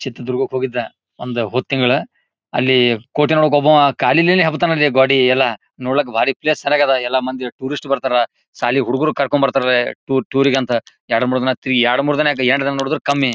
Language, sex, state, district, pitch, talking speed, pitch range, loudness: Kannada, male, Karnataka, Gulbarga, 130 Hz, 145 wpm, 125-145 Hz, -16 LUFS